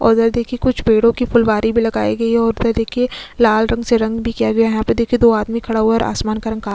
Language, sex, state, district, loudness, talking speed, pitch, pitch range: Hindi, female, Chhattisgarh, Sukma, -16 LUFS, 310 wpm, 230 Hz, 225-235 Hz